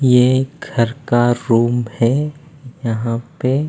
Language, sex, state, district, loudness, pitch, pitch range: Hindi, male, Punjab, Fazilka, -17 LUFS, 125 Hz, 115-135 Hz